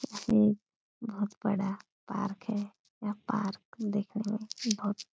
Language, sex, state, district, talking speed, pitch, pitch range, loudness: Hindi, female, Bihar, Supaul, 140 wpm, 210 Hz, 205-215 Hz, -33 LUFS